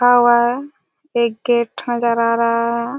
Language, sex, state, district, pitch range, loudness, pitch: Hindi, female, Chhattisgarh, Raigarh, 235-245 Hz, -17 LUFS, 240 Hz